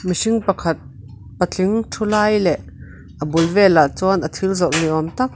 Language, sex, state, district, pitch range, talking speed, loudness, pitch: Mizo, female, Mizoram, Aizawl, 160-200 Hz, 180 wpm, -18 LUFS, 180 Hz